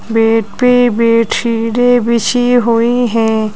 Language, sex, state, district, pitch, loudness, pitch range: Hindi, female, Madhya Pradesh, Bhopal, 230 Hz, -12 LUFS, 225-245 Hz